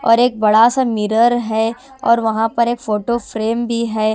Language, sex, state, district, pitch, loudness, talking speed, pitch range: Hindi, female, Punjab, Kapurthala, 230 Hz, -16 LUFS, 190 wpm, 220-240 Hz